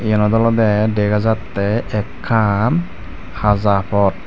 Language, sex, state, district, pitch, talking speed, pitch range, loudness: Chakma, male, Tripura, Dhalai, 105 Hz, 100 wpm, 100-110 Hz, -17 LUFS